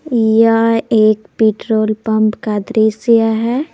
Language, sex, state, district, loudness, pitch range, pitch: Hindi, female, Jharkhand, Palamu, -14 LUFS, 215-230 Hz, 220 Hz